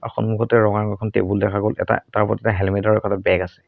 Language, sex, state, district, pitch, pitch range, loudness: Assamese, male, Assam, Sonitpur, 105 Hz, 100-110 Hz, -20 LUFS